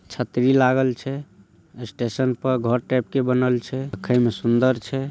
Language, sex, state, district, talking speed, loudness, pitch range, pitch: Maithili, male, Bihar, Saharsa, 165 wpm, -21 LUFS, 120-130 Hz, 125 Hz